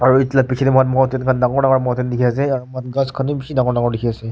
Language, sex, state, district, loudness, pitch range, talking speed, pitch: Nagamese, male, Nagaland, Kohima, -17 LUFS, 125-135 Hz, 250 wpm, 130 Hz